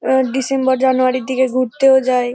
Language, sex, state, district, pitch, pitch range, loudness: Bengali, female, West Bengal, North 24 Parganas, 260 Hz, 255-265 Hz, -15 LUFS